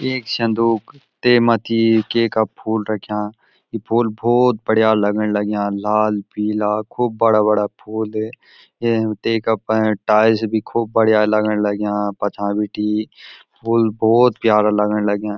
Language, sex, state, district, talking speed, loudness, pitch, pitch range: Garhwali, male, Uttarakhand, Uttarkashi, 135 wpm, -18 LUFS, 110 Hz, 105-115 Hz